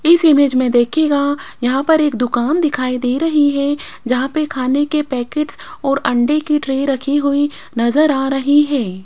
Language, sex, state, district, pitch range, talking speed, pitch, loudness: Hindi, female, Rajasthan, Jaipur, 255-300 Hz, 180 wpm, 280 Hz, -16 LUFS